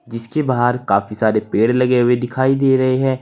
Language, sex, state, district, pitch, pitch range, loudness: Hindi, male, Uttar Pradesh, Saharanpur, 125 Hz, 115-130 Hz, -16 LUFS